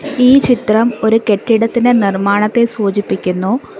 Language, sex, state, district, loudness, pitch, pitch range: Malayalam, female, Kerala, Kollam, -13 LUFS, 225 Hz, 205-240 Hz